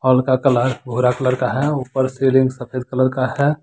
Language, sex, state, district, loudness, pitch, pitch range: Hindi, male, Jharkhand, Deoghar, -18 LUFS, 130 Hz, 125-135 Hz